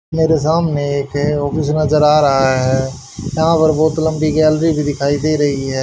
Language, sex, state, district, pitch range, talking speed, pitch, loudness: Hindi, male, Haryana, Rohtak, 140-155 Hz, 185 wpm, 150 Hz, -15 LUFS